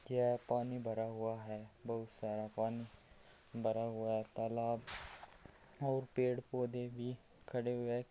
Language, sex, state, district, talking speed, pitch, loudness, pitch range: Hindi, male, Uttar Pradesh, Muzaffarnagar, 140 wpm, 115 Hz, -41 LUFS, 110-125 Hz